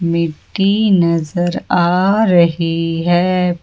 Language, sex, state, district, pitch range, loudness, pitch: Hindi, female, Jharkhand, Ranchi, 170-185 Hz, -15 LUFS, 175 Hz